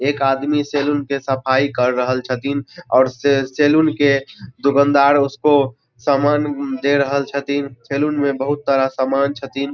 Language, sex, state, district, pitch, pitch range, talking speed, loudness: Maithili, male, Bihar, Supaul, 140 Hz, 135-145 Hz, 150 wpm, -17 LUFS